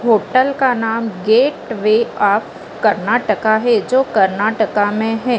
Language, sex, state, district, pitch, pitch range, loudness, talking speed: Hindi, female, Chhattisgarh, Bilaspur, 225 Hz, 215-245 Hz, -15 LUFS, 135 wpm